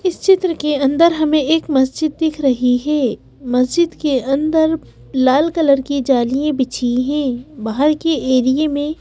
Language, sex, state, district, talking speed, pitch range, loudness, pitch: Hindi, female, Madhya Pradesh, Bhopal, 160 wpm, 260-315 Hz, -16 LUFS, 285 Hz